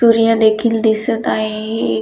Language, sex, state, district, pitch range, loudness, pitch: Marathi, female, Maharashtra, Dhule, 215-225 Hz, -15 LUFS, 220 Hz